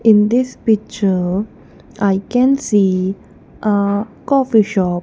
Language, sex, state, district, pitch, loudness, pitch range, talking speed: English, female, Punjab, Kapurthala, 210 Hz, -16 LUFS, 195-225 Hz, 105 wpm